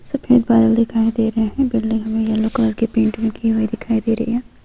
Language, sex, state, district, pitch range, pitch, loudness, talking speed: Hindi, female, Bihar, Vaishali, 225-230 Hz, 225 Hz, -18 LUFS, 230 wpm